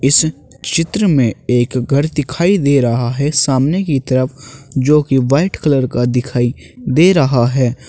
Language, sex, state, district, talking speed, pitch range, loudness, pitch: Hindi, male, Uttar Pradesh, Shamli, 160 wpm, 125-150 Hz, -14 LUFS, 135 Hz